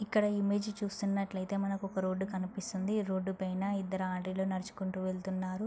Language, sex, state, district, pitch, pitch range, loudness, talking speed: Telugu, female, Andhra Pradesh, Anantapur, 190 Hz, 185-200 Hz, -35 LUFS, 170 wpm